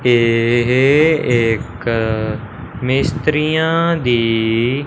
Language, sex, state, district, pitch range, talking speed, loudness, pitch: Hindi, male, Punjab, Fazilka, 115-145 Hz, 50 wpm, -15 LUFS, 120 Hz